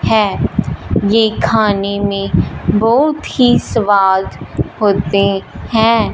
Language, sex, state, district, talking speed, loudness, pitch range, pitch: Hindi, female, Punjab, Fazilka, 90 wpm, -14 LUFS, 200-225 Hz, 205 Hz